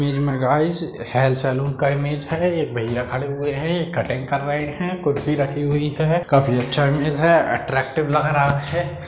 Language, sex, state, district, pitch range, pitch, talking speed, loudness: Hindi, male, Bihar, Darbhanga, 135-155 Hz, 145 Hz, 190 wpm, -20 LUFS